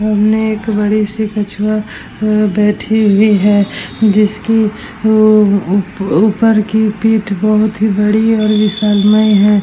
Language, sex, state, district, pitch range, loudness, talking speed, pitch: Hindi, female, Bihar, Vaishali, 210-215 Hz, -12 LUFS, 120 wpm, 215 Hz